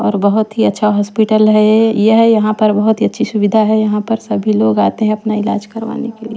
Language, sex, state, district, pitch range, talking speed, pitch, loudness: Hindi, female, Chhattisgarh, Raipur, 210-220 Hz, 245 wpm, 215 Hz, -13 LUFS